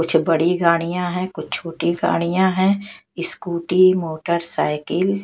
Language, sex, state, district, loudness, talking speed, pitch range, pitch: Hindi, female, Chhattisgarh, Raipur, -20 LUFS, 125 wpm, 170-185 Hz, 170 Hz